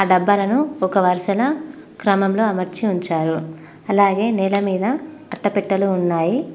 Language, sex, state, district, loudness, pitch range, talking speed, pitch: Telugu, female, Telangana, Mahabubabad, -19 LUFS, 185-220 Hz, 100 wpm, 200 Hz